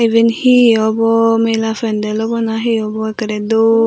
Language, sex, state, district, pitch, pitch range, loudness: Chakma, female, Tripura, Unakoti, 225 Hz, 220-230 Hz, -14 LUFS